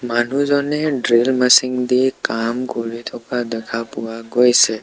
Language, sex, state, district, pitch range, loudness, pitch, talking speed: Assamese, male, Assam, Sonitpur, 115-130 Hz, -17 LUFS, 125 Hz, 125 wpm